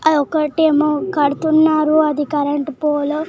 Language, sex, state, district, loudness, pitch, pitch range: Telugu, female, Telangana, Nalgonda, -16 LUFS, 300 Hz, 295-315 Hz